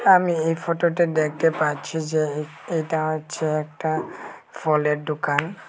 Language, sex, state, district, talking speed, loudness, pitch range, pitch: Bengali, male, Tripura, West Tripura, 125 wpm, -23 LUFS, 150-165 Hz, 155 Hz